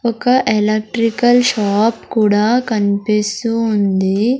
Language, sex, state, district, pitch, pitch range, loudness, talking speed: Telugu, male, Andhra Pradesh, Sri Satya Sai, 220 Hz, 210-235 Hz, -15 LUFS, 80 wpm